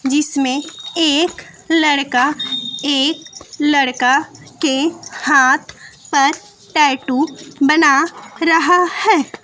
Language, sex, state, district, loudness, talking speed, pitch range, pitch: Hindi, female, Bihar, West Champaran, -15 LUFS, 75 wpm, 275-320 Hz, 295 Hz